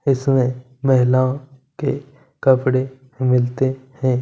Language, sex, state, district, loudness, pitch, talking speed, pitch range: Hindi, male, Punjab, Kapurthala, -19 LUFS, 130 Hz, 85 wpm, 130-135 Hz